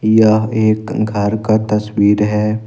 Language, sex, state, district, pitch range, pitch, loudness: Hindi, male, Jharkhand, Ranchi, 105-110 Hz, 110 Hz, -14 LUFS